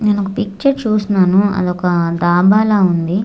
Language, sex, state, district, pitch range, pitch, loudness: Telugu, female, Andhra Pradesh, Manyam, 180-210 Hz, 195 Hz, -14 LUFS